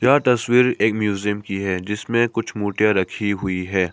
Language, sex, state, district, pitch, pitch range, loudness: Hindi, male, Arunachal Pradesh, Papum Pare, 105 Hz, 100-120 Hz, -20 LUFS